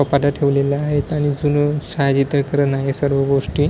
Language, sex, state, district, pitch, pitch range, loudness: Marathi, male, Maharashtra, Washim, 140 Hz, 140-145 Hz, -18 LUFS